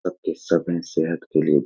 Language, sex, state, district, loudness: Hindi, male, Bihar, Saharsa, -23 LUFS